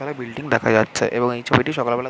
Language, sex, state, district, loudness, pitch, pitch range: Bengali, male, West Bengal, Jhargram, -20 LUFS, 120 Hz, 115-135 Hz